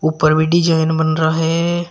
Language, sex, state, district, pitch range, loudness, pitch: Hindi, male, Uttar Pradesh, Shamli, 160-165 Hz, -15 LUFS, 160 Hz